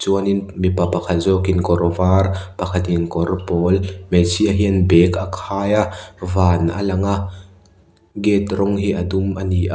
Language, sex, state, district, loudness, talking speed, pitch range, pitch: Mizo, male, Mizoram, Aizawl, -18 LUFS, 165 wpm, 90-100 Hz, 95 Hz